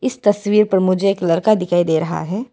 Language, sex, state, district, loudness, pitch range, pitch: Hindi, female, Arunachal Pradesh, Papum Pare, -17 LUFS, 170-205 Hz, 190 Hz